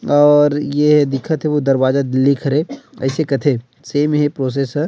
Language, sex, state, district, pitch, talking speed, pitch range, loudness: Chhattisgarhi, male, Chhattisgarh, Rajnandgaon, 145 Hz, 195 wpm, 135-150 Hz, -16 LUFS